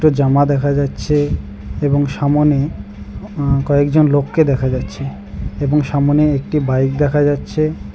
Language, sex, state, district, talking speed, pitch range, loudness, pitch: Bengali, male, West Bengal, Cooch Behar, 120 wpm, 140-150 Hz, -16 LUFS, 145 Hz